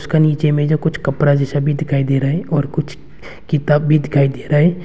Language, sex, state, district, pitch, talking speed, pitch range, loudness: Hindi, male, Arunachal Pradesh, Longding, 150 Hz, 235 wpm, 140-155 Hz, -16 LUFS